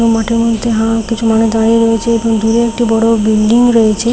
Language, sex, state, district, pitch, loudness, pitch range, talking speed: Bengali, female, West Bengal, Paschim Medinipur, 225 Hz, -11 LUFS, 225-230 Hz, 190 wpm